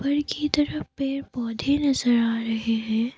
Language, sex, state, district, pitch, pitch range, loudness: Hindi, female, Assam, Kamrup Metropolitan, 255 Hz, 230-280 Hz, -24 LUFS